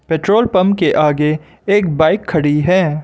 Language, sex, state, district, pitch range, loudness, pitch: Hindi, male, Arunachal Pradesh, Lower Dibang Valley, 150-195 Hz, -14 LUFS, 165 Hz